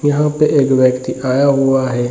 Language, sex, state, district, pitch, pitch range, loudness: Hindi, male, Bihar, Jamui, 135 Hz, 130-145 Hz, -14 LUFS